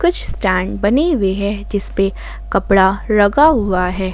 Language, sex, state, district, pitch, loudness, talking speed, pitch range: Hindi, female, Jharkhand, Ranchi, 200 Hz, -15 LUFS, 160 wpm, 190-215 Hz